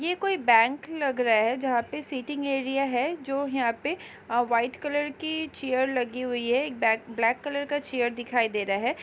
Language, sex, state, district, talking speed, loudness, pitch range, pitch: Hindi, female, Chhattisgarh, Raigarh, 205 wpm, -27 LUFS, 240-290 Hz, 260 Hz